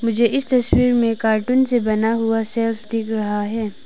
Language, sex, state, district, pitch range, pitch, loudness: Hindi, female, Arunachal Pradesh, Papum Pare, 220-235 Hz, 225 Hz, -19 LUFS